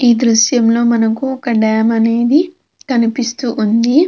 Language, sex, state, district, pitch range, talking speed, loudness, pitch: Telugu, female, Andhra Pradesh, Krishna, 225-255 Hz, 130 wpm, -13 LUFS, 235 Hz